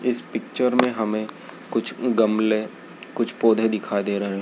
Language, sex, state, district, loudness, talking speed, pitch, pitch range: Hindi, male, Madhya Pradesh, Dhar, -23 LUFS, 165 wpm, 110 Hz, 105-120 Hz